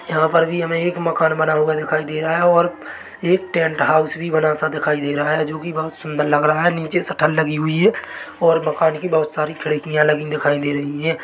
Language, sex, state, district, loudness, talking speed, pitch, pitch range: Hindi, male, Chhattisgarh, Bilaspur, -18 LUFS, 250 wpm, 155 Hz, 150-165 Hz